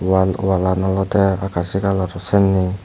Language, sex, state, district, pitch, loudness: Chakma, male, Tripura, Dhalai, 95 Hz, -18 LUFS